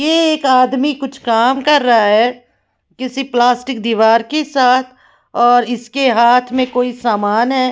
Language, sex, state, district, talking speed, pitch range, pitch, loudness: Hindi, female, Punjab, Fazilka, 155 wpm, 240-270 Hz, 250 Hz, -13 LUFS